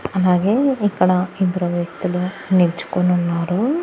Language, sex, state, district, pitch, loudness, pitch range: Telugu, female, Andhra Pradesh, Annamaya, 180 Hz, -19 LUFS, 180-195 Hz